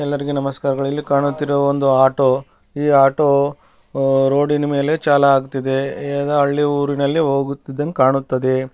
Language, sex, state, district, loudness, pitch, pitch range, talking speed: Kannada, male, Karnataka, Bellary, -17 LUFS, 140 Hz, 135-145 Hz, 115 wpm